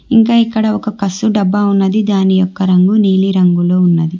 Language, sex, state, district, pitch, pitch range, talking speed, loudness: Telugu, female, Telangana, Hyderabad, 195 Hz, 185-215 Hz, 160 wpm, -12 LUFS